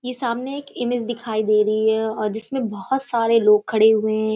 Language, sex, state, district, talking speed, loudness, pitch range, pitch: Hindi, female, Uttar Pradesh, Hamirpur, 220 wpm, -20 LUFS, 215-245 Hz, 220 Hz